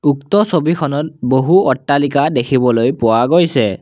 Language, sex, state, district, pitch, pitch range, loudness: Assamese, male, Assam, Kamrup Metropolitan, 140 Hz, 130-160 Hz, -14 LUFS